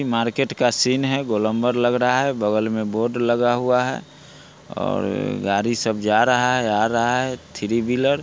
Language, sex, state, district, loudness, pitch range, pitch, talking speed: Hindi, male, Bihar, Muzaffarpur, -20 LUFS, 110-125 Hz, 120 Hz, 195 wpm